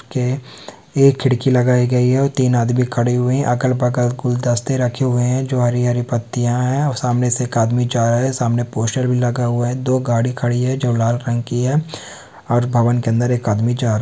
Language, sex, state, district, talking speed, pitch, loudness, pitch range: Hindi, male, Bihar, Supaul, 230 wpm, 125 Hz, -17 LUFS, 120-130 Hz